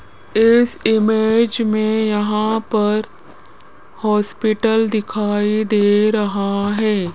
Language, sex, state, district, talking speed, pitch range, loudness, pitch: Hindi, female, Rajasthan, Jaipur, 85 wpm, 210-220 Hz, -17 LUFS, 215 Hz